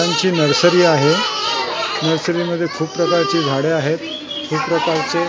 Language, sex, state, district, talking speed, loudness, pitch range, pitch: Marathi, male, Maharashtra, Mumbai Suburban, 115 wpm, -17 LUFS, 160-175 Hz, 170 Hz